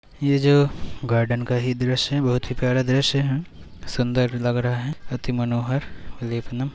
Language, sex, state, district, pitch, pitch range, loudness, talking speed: Hindi, male, Uttar Pradesh, Hamirpur, 125 Hz, 120-135 Hz, -22 LUFS, 170 wpm